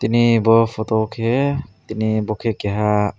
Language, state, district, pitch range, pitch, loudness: Kokborok, Tripura, West Tripura, 105-115 Hz, 110 Hz, -19 LUFS